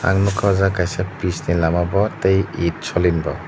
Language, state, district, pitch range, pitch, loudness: Kokborok, Tripura, Dhalai, 85-95 Hz, 90 Hz, -19 LUFS